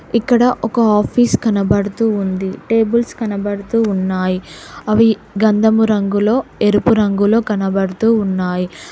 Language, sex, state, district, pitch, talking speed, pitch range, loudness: Telugu, female, Telangana, Hyderabad, 210 Hz, 100 wpm, 195-225 Hz, -15 LUFS